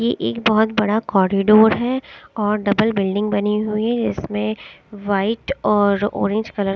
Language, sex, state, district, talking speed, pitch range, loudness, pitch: Hindi, female, Odisha, Sambalpur, 160 wpm, 200-220 Hz, -19 LUFS, 210 Hz